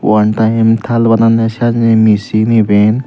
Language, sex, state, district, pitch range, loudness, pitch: Chakma, male, Tripura, Dhalai, 110-115 Hz, -11 LUFS, 115 Hz